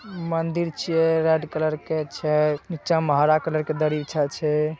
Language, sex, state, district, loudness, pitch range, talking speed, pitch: Maithili, male, Bihar, Saharsa, -23 LUFS, 150-165 Hz, 160 wpm, 155 Hz